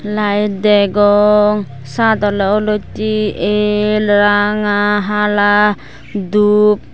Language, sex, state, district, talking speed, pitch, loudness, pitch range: Chakma, female, Tripura, West Tripura, 80 wpm, 210 Hz, -13 LUFS, 205-210 Hz